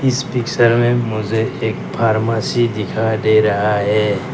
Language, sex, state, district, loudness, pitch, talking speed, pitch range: Hindi, male, Arunachal Pradesh, Lower Dibang Valley, -16 LUFS, 110 Hz, 140 wpm, 110-120 Hz